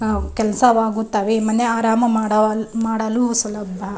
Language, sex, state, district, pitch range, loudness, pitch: Kannada, female, Karnataka, Raichur, 215-230 Hz, -18 LUFS, 220 Hz